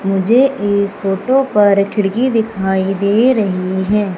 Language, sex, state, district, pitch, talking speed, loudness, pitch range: Hindi, female, Madhya Pradesh, Umaria, 200 Hz, 130 wpm, -14 LUFS, 195-225 Hz